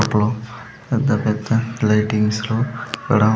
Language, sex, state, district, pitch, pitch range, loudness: Telugu, male, Andhra Pradesh, Sri Satya Sai, 110 Hz, 105-115 Hz, -20 LUFS